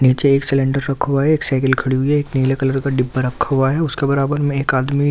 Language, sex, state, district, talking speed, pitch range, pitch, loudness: Hindi, male, Delhi, New Delhi, 295 wpm, 130-140 Hz, 135 Hz, -17 LUFS